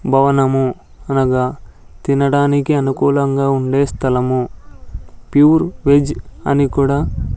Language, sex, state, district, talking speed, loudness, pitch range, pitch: Telugu, male, Andhra Pradesh, Sri Satya Sai, 90 wpm, -15 LUFS, 125-140 Hz, 135 Hz